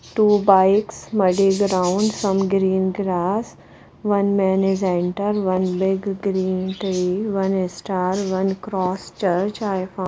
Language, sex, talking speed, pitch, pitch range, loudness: English, female, 135 wpm, 195 Hz, 185-200 Hz, -20 LUFS